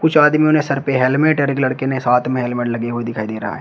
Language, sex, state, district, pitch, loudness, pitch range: Hindi, male, Uttar Pradesh, Shamli, 130 Hz, -17 LUFS, 120-145 Hz